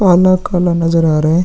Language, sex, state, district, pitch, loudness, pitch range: Hindi, male, Bihar, Vaishali, 175 Hz, -12 LUFS, 165-180 Hz